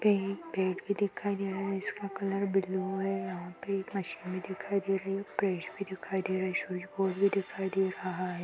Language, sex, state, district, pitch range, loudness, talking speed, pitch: Hindi, female, Uttar Pradesh, Ghazipur, 185-195 Hz, -33 LUFS, 250 wpm, 195 Hz